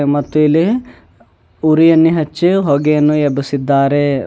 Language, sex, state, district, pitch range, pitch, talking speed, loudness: Kannada, male, Karnataka, Bidar, 140-160 Hz, 145 Hz, 85 wpm, -13 LUFS